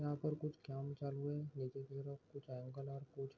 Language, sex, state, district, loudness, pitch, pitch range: Hindi, male, Jharkhand, Jamtara, -46 LUFS, 140 Hz, 135-145 Hz